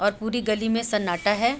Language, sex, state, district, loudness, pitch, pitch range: Hindi, female, Uttar Pradesh, Budaun, -24 LUFS, 215 Hz, 205-230 Hz